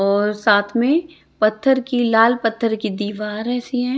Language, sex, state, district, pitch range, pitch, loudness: Hindi, female, Chhattisgarh, Raipur, 210-245 Hz, 225 Hz, -18 LUFS